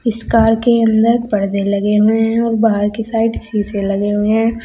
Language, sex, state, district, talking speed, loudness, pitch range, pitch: Hindi, female, Uttar Pradesh, Saharanpur, 205 wpm, -15 LUFS, 205-230 Hz, 225 Hz